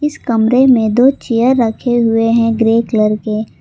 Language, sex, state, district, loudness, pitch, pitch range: Hindi, female, Jharkhand, Palamu, -13 LUFS, 230 Hz, 225-245 Hz